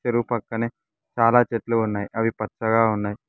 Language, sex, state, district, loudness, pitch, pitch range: Telugu, male, Telangana, Mahabubabad, -22 LUFS, 115 Hz, 110-120 Hz